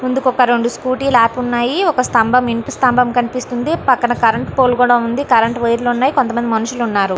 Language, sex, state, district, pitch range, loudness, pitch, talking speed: Telugu, female, Andhra Pradesh, Guntur, 235-255 Hz, -15 LUFS, 245 Hz, 200 wpm